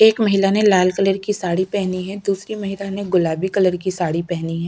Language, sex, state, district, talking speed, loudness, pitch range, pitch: Hindi, female, Chhattisgarh, Sukma, 220 wpm, -19 LUFS, 180-200 Hz, 195 Hz